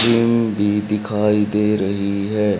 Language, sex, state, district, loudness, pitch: Hindi, male, Haryana, Rohtak, -18 LUFS, 105 Hz